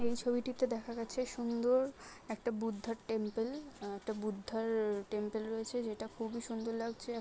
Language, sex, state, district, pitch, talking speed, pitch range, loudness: Bengali, female, West Bengal, Dakshin Dinajpur, 230 Hz, 140 wpm, 220-240 Hz, -38 LUFS